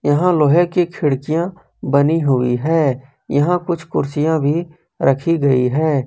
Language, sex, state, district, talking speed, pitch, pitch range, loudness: Hindi, male, Jharkhand, Ranchi, 140 wpm, 155 Hz, 140-165 Hz, -17 LUFS